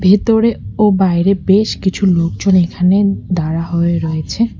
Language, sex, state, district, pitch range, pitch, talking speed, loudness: Bengali, female, West Bengal, Cooch Behar, 170-200 Hz, 190 Hz, 130 wpm, -14 LUFS